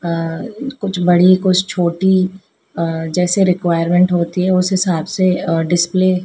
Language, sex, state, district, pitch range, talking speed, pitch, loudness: Hindi, female, Madhya Pradesh, Dhar, 170-185 Hz, 155 wpm, 180 Hz, -15 LUFS